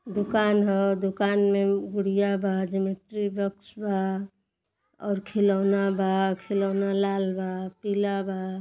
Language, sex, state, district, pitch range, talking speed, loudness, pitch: Bhojpuri, female, Uttar Pradesh, Gorakhpur, 195-200 Hz, 120 wpm, -26 LUFS, 195 Hz